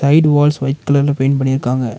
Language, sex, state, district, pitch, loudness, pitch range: Tamil, male, Tamil Nadu, Nilgiris, 140 Hz, -14 LUFS, 135-145 Hz